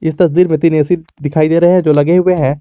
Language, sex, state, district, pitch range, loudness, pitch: Hindi, male, Jharkhand, Garhwa, 155-180 Hz, -12 LUFS, 165 Hz